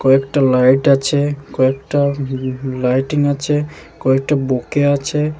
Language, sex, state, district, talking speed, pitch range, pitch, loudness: Bengali, male, West Bengal, Jalpaiguri, 120 wpm, 130-145 Hz, 135 Hz, -16 LUFS